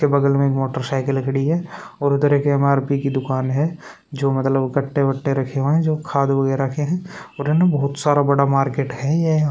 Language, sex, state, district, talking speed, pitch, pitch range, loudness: Hindi, male, Rajasthan, Churu, 215 wpm, 140 Hz, 135-145 Hz, -19 LUFS